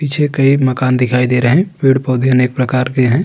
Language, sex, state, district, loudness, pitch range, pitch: Hindi, male, Uttarakhand, Tehri Garhwal, -13 LUFS, 125-140 Hz, 130 Hz